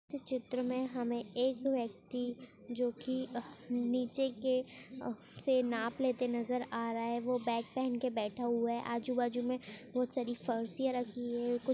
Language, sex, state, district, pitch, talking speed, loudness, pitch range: Hindi, female, Uttar Pradesh, Etah, 245 Hz, 160 wpm, -36 LUFS, 235-255 Hz